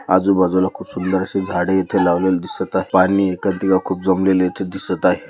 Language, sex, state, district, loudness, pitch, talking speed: Marathi, male, Maharashtra, Dhule, -18 LUFS, 95 Hz, 180 wpm